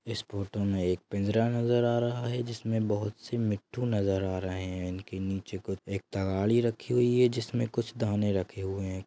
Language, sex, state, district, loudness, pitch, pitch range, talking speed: Hindi, male, Chhattisgarh, Raigarh, -30 LUFS, 105 Hz, 95-120 Hz, 190 wpm